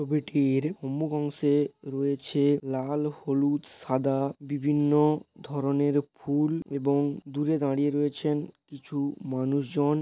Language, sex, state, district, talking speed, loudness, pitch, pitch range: Bengali, male, West Bengal, Paschim Medinipur, 95 wpm, -28 LUFS, 145 Hz, 140-150 Hz